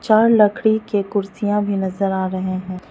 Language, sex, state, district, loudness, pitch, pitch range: Hindi, female, Arunachal Pradesh, Lower Dibang Valley, -19 LUFS, 200 Hz, 190-215 Hz